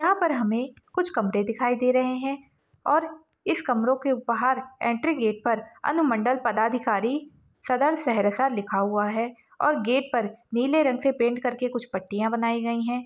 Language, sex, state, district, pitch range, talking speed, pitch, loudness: Hindi, female, Bihar, Saharsa, 230-275 Hz, 170 wpm, 245 Hz, -25 LUFS